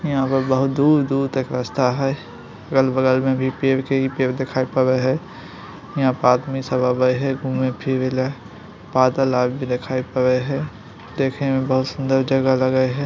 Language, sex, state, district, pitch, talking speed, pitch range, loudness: Maithili, male, Bihar, Bhagalpur, 130 Hz, 190 wpm, 130-135 Hz, -20 LUFS